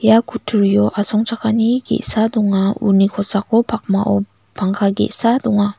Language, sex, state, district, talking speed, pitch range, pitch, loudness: Garo, female, Meghalaya, West Garo Hills, 115 wpm, 200-225 Hz, 210 Hz, -16 LUFS